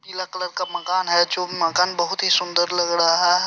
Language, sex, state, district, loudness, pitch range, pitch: Hindi, male, Bihar, Supaul, -20 LUFS, 175-180 Hz, 180 Hz